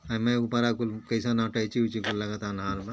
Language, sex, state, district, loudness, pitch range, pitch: Bhojpuri, male, Uttar Pradesh, Ghazipur, -28 LUFS, 105-120 Hz, 115 Hz